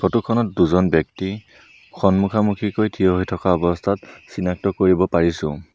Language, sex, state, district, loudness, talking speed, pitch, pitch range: Assamese, male, Assam, Sonitpur, -19 LUFS, 135 wpm, 95 Hz, 90-100 Hz